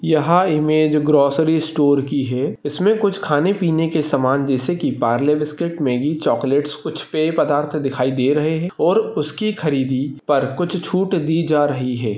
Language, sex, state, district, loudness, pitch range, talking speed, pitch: Hindi, male, Maharashtra, Solapur, -18 LUFS, 140-165 Hz, 170 wpm, 150 Hz